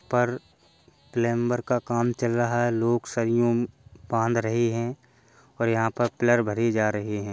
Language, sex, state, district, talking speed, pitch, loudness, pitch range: Hindi, male, Uttar Pradesh, Jalaun, 165 wpm, 120 Hz, -25 LUFS, 115-120 Hz